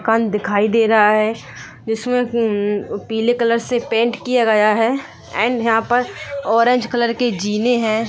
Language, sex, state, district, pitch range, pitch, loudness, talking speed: Hindi, female, Jharkhand, Sahebganj, 215-240 Hz, 230 Hz, -17 LUFS, 165 wpm